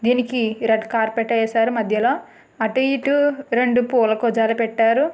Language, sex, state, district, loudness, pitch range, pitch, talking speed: Telugu, female, Andhra Pradesh, Srikakulam, -19 LUFS, 225-250 Hz, 230 Hz, 130 wpm